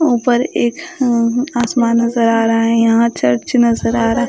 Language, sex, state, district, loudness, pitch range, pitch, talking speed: Hindi, female, Bihar, Katihar, -14 LUFS, 230-245 Hz, 235 Hz, 180 wpm